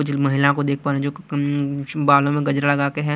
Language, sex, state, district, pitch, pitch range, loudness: Hindi, male, Chhattisgarh, Raipur, 145 Hz, 140-145 Hz, -20 LUFS